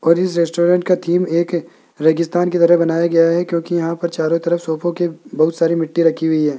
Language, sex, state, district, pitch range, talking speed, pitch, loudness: Hindi, male, Rajasthan, Jaipur, 165-175 Hz, 225 wpm, 170 Hz, -17 LUFS